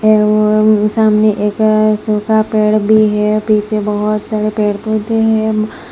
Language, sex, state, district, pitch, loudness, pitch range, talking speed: Hindi, female, Assam, Hailakandi, 215 Hz, -13 LUFS, 210-215 Hz, 130 wpm